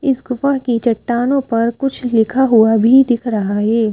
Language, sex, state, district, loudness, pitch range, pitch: Hindi, female, Madhya Pradesh, Bhopal, -15 LUFS, 225-265 Hz, 240 Hz